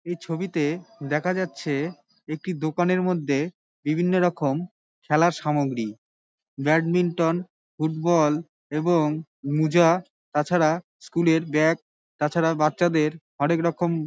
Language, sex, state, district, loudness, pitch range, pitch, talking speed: Bengali, male, West Bengal, Dakshin Dinajpur, -24 LUFS, 150-175 Hz, 160 Hz, 100 wpm